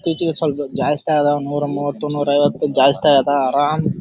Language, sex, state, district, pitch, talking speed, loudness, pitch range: Kannada, male, Karnataka, Raichur, 145 Hz, 105 wpm, -17 LUFS, 145-155 Hz